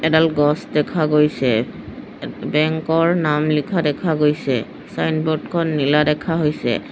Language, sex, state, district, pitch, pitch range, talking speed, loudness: Assamese, female, Assam, Sonitpur, 155 Hz, 150-160 Hz, 140 wpm, -19 LUFS